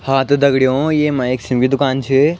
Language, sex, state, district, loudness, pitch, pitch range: Garhwali, male, Uttarakhand, Tehri Garhwal, -15 LUFS, 135 Hz, 130-145 Hz